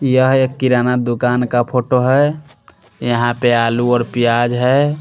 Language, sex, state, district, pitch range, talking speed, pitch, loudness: Hindi, male, Bihar, Katihar, 120-130 Hz, 155 wpm, 125 Hz, -15 LUFS